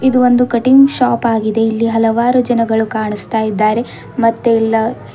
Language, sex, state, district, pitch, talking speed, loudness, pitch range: Kannada, female, Karnataka, Bidar, 230 Hz, 140 wpm, -13 LUFS, 220-245 Hz